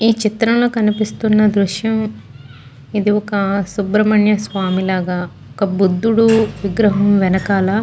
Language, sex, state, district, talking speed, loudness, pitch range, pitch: Telugu, female, Andhra Pradesh, Guntur, 115 wpm, -16 LUFS, 190-215 Hz, 205 Hz